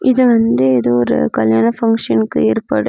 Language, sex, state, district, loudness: Tamil, female, Tamil Nadu, Namakkal, -14 LUFS